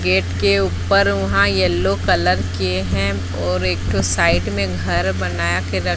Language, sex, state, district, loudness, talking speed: Hindi, female, Odisha, Sambalpur, -18 LUFS, 170 wpm